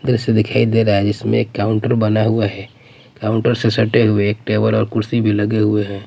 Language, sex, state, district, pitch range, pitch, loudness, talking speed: Hindi, male, Bihar, Patna, 105-115 Hz, 110 Hz, -16 LUFS, 235 wpm